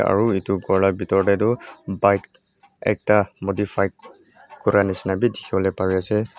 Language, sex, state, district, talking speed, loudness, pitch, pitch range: Nagamese, male, Mizoram, Aizawl, 150 wpm, -21 LUFS, 100 Hz, 95-105 Hz